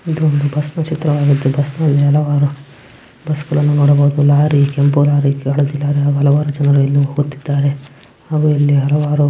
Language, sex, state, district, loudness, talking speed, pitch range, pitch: Kannada, male, Karnataka, Belgaum, -14 LUFS, 150 wpm, 140-150 Hz, 145 Hz